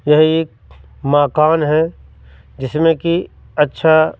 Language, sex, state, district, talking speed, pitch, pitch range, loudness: Hindi, male, Madhya Pradesh, Katni, 100 wpm, 150 Hz, 115-160 Hz, -15 LUFS